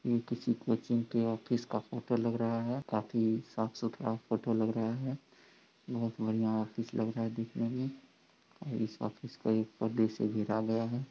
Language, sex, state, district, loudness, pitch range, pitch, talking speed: Hindi, male, Bihar, Sitamarhi, -35 LUFS, 110-120 Hz, 115 Hz, 180 wpm